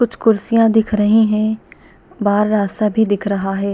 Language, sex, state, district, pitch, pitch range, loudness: Hindi, female, Chhattisgarh, Balrampur, 215 Hz, 205-220 Hz, -15 LUFS